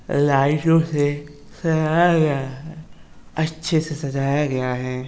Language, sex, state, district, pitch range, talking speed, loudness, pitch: Hindi, male, Uttar Pradesh, Etah, 140-160 Hz, 140 wpm, -20 LUFS, 150 Hz